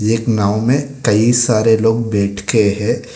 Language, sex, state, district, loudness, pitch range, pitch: Hindi, male, Telangana, Hyderabad, -15 LUFS, 105-120 Hz, 115 Hz